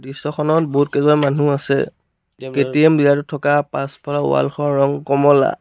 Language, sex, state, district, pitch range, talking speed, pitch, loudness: Assamese, male, Assam, Sonitpur, 140-145 Hz, 140 wpm, 145 Hz, -17 LUFS